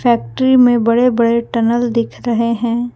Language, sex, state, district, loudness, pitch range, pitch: Hindi, female, Jharkhand, Palamu, -14 LUFS, 230-245 Hz, 235 Hz